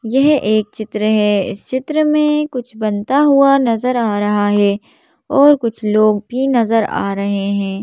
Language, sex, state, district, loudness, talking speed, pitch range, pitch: Hindi, female, Madhya Pradesh, Bhopal, -15 LUFS, 170 wpm, 205-270 Hz, 225 Hz